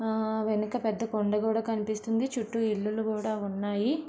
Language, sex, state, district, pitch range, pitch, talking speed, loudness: Telugu, female, Andhra Pradesh, Visakhapatnam, 215-225 Hz, 220 Hz, 145 wpm, -30 LUFS